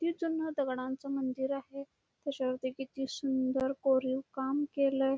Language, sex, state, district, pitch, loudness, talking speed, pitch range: Marathi, female, Karnataka, Belgaum, 270 Hz, -34 LUFS, 125 wpm, 265-280 Hz